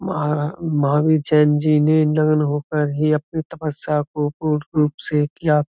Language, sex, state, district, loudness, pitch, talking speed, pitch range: Hindi, male, Uttar Pradesh, Budaun, -19 LUFS, 150 Hz, 170 wpm, 150-155 Hz